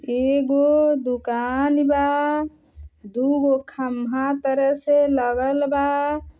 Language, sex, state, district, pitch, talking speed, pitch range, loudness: Bhojpuri, female, Uttar Pradesh, Deoria, 275 Hz, 85 wpm, 255-290 Hz, -21 LUFS